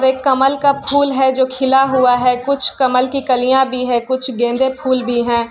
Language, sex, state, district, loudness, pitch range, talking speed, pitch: Hindi, female, Bihar, Kishanganj, -14 LUFS, 250-270 Hz, 205 wpm, 260 Hz